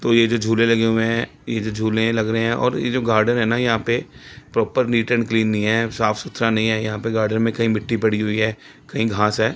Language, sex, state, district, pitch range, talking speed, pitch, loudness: Hindi, male, Chandigarh, Chandigarh, 110-115 Hz, 270 wpm, 115 Hz, -20 LUFS